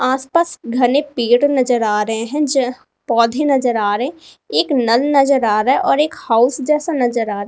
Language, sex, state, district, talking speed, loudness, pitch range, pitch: Hindi, female, Uttar Pradesh, Lalitpur, 210 wpm, -16 LUFS, 230-285 Hz, 255 Hz